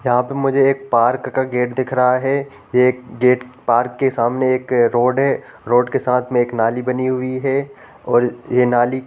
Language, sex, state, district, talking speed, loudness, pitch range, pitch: Hindi, male, Bihar, Samastipur, 205 wpm, -17 LUFS, 120-130 Hz, 125 Hz